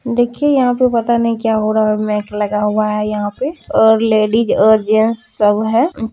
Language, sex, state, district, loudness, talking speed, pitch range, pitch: Maithili, female, Bihar, Kishanganj, -14 LUFS, 195 wpm, 215-235 Hz, 220 Hz